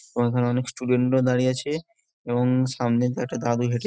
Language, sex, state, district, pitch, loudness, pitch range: Bengali, male, West Bengal, Jhargram, 125 Hz, -24 LUFS, 120-130 Hz